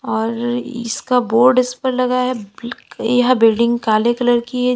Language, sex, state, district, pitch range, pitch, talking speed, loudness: Hindi, female, Uttar Pradesh, Lalitpur, 230-250 Hz, 240 Hz, 200 wpm, -16 LUFS